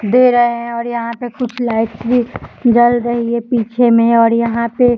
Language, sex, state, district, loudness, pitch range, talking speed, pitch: Hindi, female, Bihar, Samastipur, -14 LUFS, 235-245 Hz, 215 wpm, 235 Hz